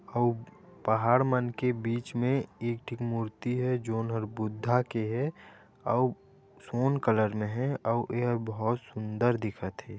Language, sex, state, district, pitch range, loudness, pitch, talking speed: Chhattisgarhi, male, Chhattisgarh, Raigarh, 110-125 Hz, -30 LUFS, 120 Hz, 150 wpm